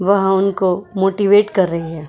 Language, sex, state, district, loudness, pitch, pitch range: Hindi, female, Uttar Pradesh, Jyotiba Phule Nagar, -16 LUFS, 195 Hz, 180-200 Hz